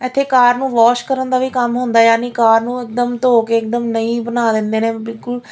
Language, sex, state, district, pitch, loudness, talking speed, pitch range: Punjabi, female, Punjab, Fazilka, 240 Hz, -15 LUFS, 230 wpm, 230-250 Hz